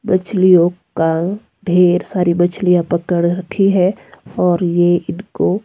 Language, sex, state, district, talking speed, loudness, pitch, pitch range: Hindi, female, Himachal Pradesh, Shimla, 115 wpm, -15 LUFS, 180 Hz, 175-185 Hz